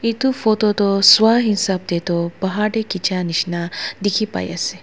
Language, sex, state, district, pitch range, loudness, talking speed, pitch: Nagamese, female, Nagaland, Dimapur, 180-220 Hz, -17 LUFS, 175 wpm, 200 Hz